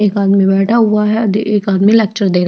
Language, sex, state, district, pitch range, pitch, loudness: Hindi, female, Chhattisgarh, Jashpur, 195-215 Hz, 205 Hz, -12 LUFS